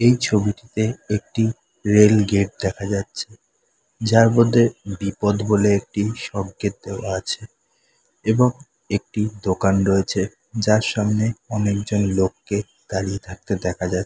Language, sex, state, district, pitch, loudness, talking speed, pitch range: Bengali, male, West Bengal, Kolkata, 105 Hz, -21 LUFS, 115 wpm, 95-110 Hz